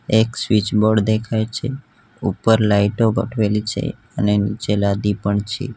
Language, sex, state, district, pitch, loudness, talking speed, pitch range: Gujarati, male, Gujarat, Valsad, 105 Hz, -19 LUFS, 135 wpm, 105-110 Hz